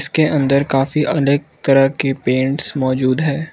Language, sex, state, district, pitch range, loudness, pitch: Hindi, male, Arunachal Pradesh, Lower Dibang Valley, 135-145 Hz, -16 LUFS, 140 Hz